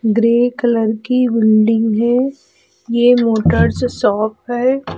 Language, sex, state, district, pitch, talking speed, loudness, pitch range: Hindi, female, Uttar Pradesh, Lalitpur, 235 Hz, 110 wpm, -15 LUFS, 220-245 Hz